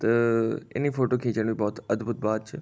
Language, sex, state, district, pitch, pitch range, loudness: Garhwali, male, Uttarakhand, Tehri Garhwal, 115 Hz, 110-120 Hz, -27 LUFS